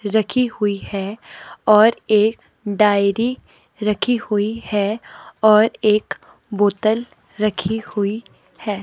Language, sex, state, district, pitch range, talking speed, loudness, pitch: Hindi, female, Himachal Pradesh, Shimla, 205-225 Hz, 100 wpm, -18 LUFS, 215 Hz